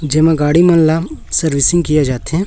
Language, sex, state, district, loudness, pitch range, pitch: Hindi, male, Chhattisgarh, Raipur, -13 LUFS, 150-165 Hz, 160 Hz